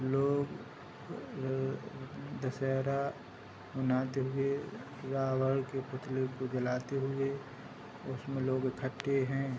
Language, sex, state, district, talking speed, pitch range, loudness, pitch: Hindi, male, Uttar Pradesh, Hamirpur, 95 wpm, 130-135 Hz, -35 LUFS, 135 Hz